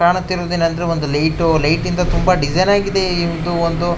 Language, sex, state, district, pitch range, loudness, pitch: Kannada, male, Karnataka, Shimoga, 165-180 Hz, -17 LUFS, 170 Hz